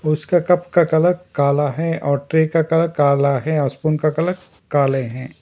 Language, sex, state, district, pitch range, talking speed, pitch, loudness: Hindi, male, Karnataka, Bangalore, 140-165 Hz, 200 wpm, 155 Hz, -18 LUFS